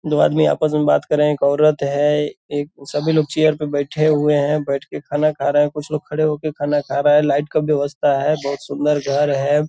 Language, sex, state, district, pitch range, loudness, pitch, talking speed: Hindi, male, Bihar, Purnia, 145-150 Hz, -18 LUFS, 150 Hz, 250 wpm